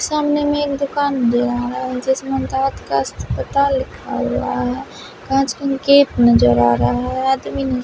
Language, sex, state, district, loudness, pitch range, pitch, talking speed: Hindi, female, Bihar, West Champaran, -17 LUFS, 245-280 Hz, 265 Hz, 185 wpm